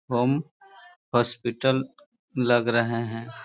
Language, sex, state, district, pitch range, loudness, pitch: Hindi, male, Bihar, Sitamarhi, 120-160 Hz, -24 LUFS, 125 Hz